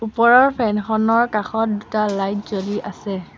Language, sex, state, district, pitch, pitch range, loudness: Assamese, female, Assam, Sonitpur, 215 Hz, 205-225 Hz, -19 LUFS